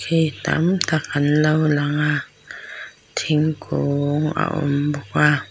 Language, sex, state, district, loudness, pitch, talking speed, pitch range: Mizo, female, Mizoram, Aizawl, -20 LUFS, 150 Hz, 130 wpm, 145-155 Hz